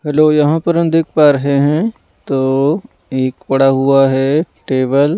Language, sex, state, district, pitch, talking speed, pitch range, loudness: Hindi, male, Delhi, New Delhi, 145 Hz, 175 wpm, 135-160 Hz, -14 LUFS